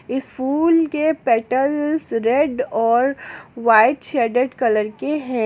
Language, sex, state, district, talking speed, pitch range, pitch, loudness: Hindi, female, Jharkhand, Garhwa, 120 wpm, 235-295 Hz, 255 Hz, -18 LUFS